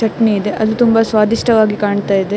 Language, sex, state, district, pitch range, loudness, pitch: Kannada, female, Karnataka, Dakshina Kannada, 205-225 Hz, -14 LUFS, 215 Hz